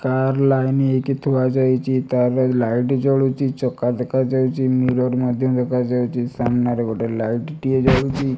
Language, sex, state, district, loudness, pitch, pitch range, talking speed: Odia, male, Odisha, Malkangiri, -19 LUFS, 130 Hz, 125-130 Hz, 155 wpm